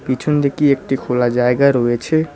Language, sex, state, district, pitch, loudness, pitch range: Bengali, male, West Bengal, Cooch Behar, 135 Hz, -16 LUFS, 125-145 Hz